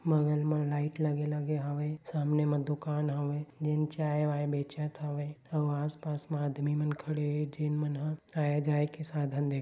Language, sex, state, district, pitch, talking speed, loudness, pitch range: Chhattisgarhi, male, Chhattisgarh, Bilaspur, 150 Hz, 200 wpm, -33 LUFS, 145-150 Hz